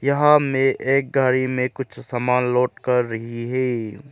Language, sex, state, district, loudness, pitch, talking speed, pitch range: Hindi, male, Arunachal Pradesh, Lower Dibang Valley, -20 LUFS, 130 Hz, 160 wpm, 125-135 Hz